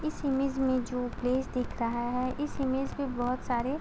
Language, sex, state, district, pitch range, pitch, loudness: Hindi, female, Uttar Pradesh, Gorakhpur, 245-275 Hz, 255 Hz, -31 LUFS